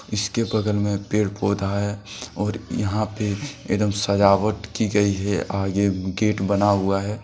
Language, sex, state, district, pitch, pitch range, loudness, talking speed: Hindi, male, Jharkhand, Deoghar, 100 Hz, 100-105 Hz, -22 LUFS, 155 wpm